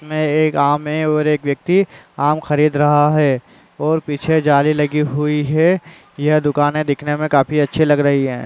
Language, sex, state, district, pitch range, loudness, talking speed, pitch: Hindi, male, Uttar Pradesh, Muzaffarnagar, 145-155 Hz, -16 LUFS, 190 wpm, 150 Hz